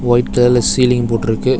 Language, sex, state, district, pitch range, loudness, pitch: Tamil, male, Tamil Nadu, Chennai, 120-125 Hz, -14 LUFS, 120 Hz